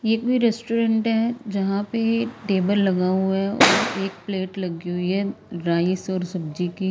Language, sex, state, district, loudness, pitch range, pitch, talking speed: Hindi, female, Himachal Pradesh, Shimla, -22 LUFS, 185-225 Hz, 195 Hz, 175 wpm